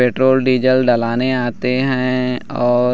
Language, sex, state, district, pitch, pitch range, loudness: Hindi, male, Chhattisgarh, Raigarh, 125 Hz, 120-130 Hz, -16 LUFS